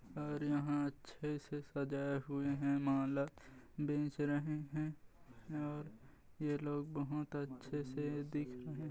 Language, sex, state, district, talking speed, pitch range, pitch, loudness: Hindi, male, Chhattisgarh, Bilaspur, 130 wpm, 140-150 Hz, 145 Hz, -41 LUFS